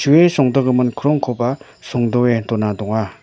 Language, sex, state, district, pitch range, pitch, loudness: Garo, male, Meghalaya, West Garo Hills, 115-135 Hz, 125 Hz, -17 LUFS